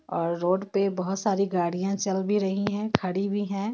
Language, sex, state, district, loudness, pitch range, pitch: Hindi, female, Jharkhand, Ranchi, -27 LUFS, 185-205 Hz, 195 Hz